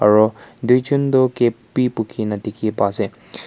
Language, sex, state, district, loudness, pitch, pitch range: Nagamese, male, Nagaland, Kohima, -19 LUFS, 115 Hz, 110-125 Hz